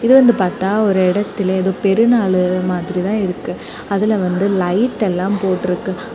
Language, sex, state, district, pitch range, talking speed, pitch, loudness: Tamil, female, Tamil Nadu, Kanyakumari, 185-215 Hz, 145 wpm, 195 Hz, -16 LUFS